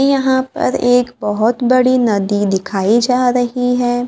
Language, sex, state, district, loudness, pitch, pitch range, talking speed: Hindi, female, Maharashtra, Gondia, -14 LUFS, 245 Hz, 215-255 Hz, 145 wpm